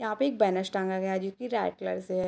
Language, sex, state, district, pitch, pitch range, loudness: Hindi, female, Bihar, Sitamarhi, 195 Hz, 190-220 Hz, -30 LUFS